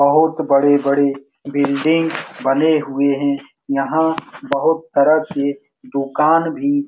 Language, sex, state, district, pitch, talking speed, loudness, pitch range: Hindi, male, Bihar, Saran, 140 Hz, 115 wpm, -17 LUFS, 140-160 Hz